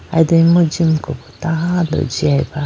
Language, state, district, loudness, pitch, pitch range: Idu Mishmi, Arunachal Pradesh, Lower Dibang Valley, -15 LUFS, 160 Hz, 150-170 Hz